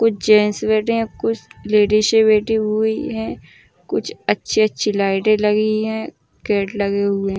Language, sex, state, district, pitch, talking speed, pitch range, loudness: Hindi, female, Uttar Pradesh, Ghazipur, 215 Hz, 155 wpm, 210-220 Hz, -18 LUFS